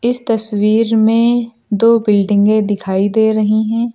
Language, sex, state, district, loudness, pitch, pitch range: Hindi, female, Uttar Pradesh, Lucknow, -13 LUFS, 220 Hz, 210-230 Hz